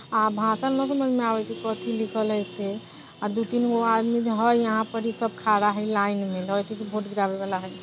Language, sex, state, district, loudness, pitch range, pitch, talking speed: Bajjika, female, Bihar, Vaishali, -25 LUFS, 205-230 Hz, 220 Hz, 170 wpm